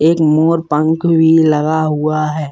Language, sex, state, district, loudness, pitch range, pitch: Hindi, male, Bihar, Muzaffarpur, -13 LUFS, 155-160 Hz, 155 Hz